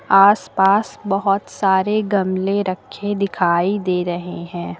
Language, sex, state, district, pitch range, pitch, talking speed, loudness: Hindi, female, Uttar Pradesh, Lucknow, 180-200 Hz, 195 Hz, 125 wpm, -18 LUFS